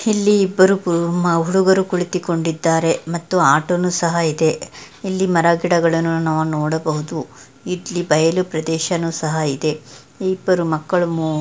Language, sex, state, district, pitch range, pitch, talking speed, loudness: Kannada, female, Karnataka, Dakshina Kannada, 160-180 Hz, 165 Hz, 105 wpm, -18 LUFS